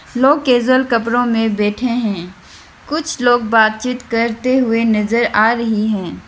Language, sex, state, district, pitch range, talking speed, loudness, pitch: Hindi, female, Arunachal Pradesh, Lower Dibang Valley, 220-250 Hz, 145 wpm, -15 LUFS, 230 Hz